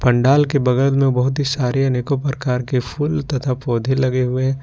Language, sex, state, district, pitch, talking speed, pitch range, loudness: Hindi, male, Jharkhand, Ranchi, 130 Hz, 195 wpm, 125-140 Hz, -18 LUFS